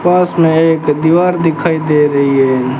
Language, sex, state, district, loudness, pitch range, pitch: Hindi, male, Rajasthan, Bikaner, -12 LUFS, 145-170 Hz, 160 Hz